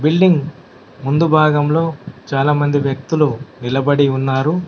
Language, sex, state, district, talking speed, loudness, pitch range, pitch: Telugu, male, Telangana, Mahabubabad, 90 wpm, -16 LUFS, 135-160 Hz, 145 Hz